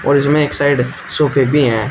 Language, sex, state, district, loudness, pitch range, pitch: Hindi, male, Uttar Pradesh, Shamli, -14 LUFS, 135-145 Hz, 140 Hz